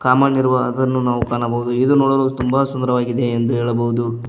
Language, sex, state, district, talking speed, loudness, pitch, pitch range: Kannada, male, Karnataka, Koppal, 155 wpm, -17 LUFS, 125 Hz, 120-130 Hz